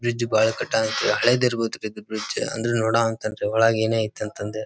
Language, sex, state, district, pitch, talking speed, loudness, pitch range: Kannada, male, Karnataka, Dharwad, 110 Hz, 180 wpm, -23 LUFS, 110-115 Hz